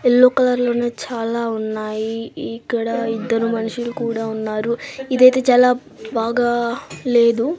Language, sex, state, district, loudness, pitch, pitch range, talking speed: Telugu, female, Andhra Pradesh, Sri Satya Sai, -19 LUFS, 235 Hz, 225-250 Hz, 110 wpm